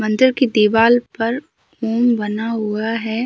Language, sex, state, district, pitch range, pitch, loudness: Hindi, female, Uttar Pradesh, Hamirpur, 220-245 Hz, 230 Hz, -17 LUFS